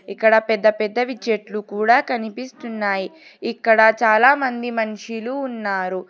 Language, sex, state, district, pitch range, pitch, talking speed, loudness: Telugu, female, Telangana, Hyderabad, 210-245 Hz, 220 Hz, 110 wpm, -19 LUFS